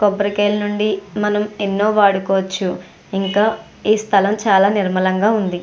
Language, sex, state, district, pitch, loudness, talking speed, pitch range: Telugu, female, Andhra Pradesh, Chittoor, 205 Hz, -17 LUFS, 130 wpm, 195-210 Hz